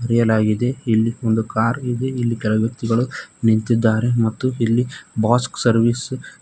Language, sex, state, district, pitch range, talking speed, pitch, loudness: Kannada, male, Karnataka, Koppal, 110-125 Hz, 130 wpm, 115 Hz, -19 LUFS